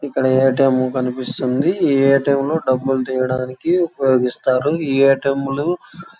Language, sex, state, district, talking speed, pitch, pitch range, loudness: Telugu, male, Andhra Pradesh, Chittoor, 155 wpm, 135 Hz, 130-140 Hz, -17 LUFS